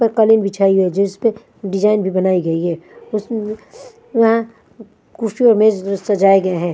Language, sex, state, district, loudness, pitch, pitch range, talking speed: Hindi, female, Punjab, Fazilka, -16 LUFS, 210 Hz, 195-225 Hz, 180 wpm